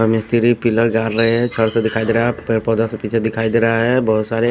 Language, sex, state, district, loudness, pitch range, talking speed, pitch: Hindi, male, Maharashtra, Washim, -16 LUFS, 110-115 Hz, 280 wpm, 115 Hz